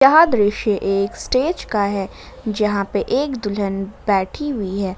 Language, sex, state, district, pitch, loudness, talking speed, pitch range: Hindi, female, Jharkhand, Ranchi, 205 Hz, -19 LUFS, 155 wpm, 195-255 Hz